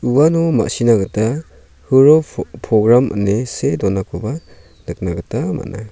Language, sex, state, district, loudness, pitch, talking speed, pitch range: Garo, male, Meghalaya, South Garo Hills, -16 LUFS, 110 Hz, 110 wpm, 90-130 Hz